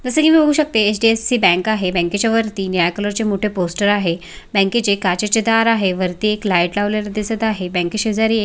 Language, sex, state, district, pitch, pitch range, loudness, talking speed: Marathi, female, Maharashtra, Sindhudurg, 210 Hz, 185-225 Hz, -17 LUFS, 200 wpm